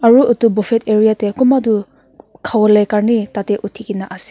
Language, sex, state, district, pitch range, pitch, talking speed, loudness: Nagamese, female, Nagaland, Kohima, 210-235 Hz, 215 Hz, 165 wpm, -14 LUFS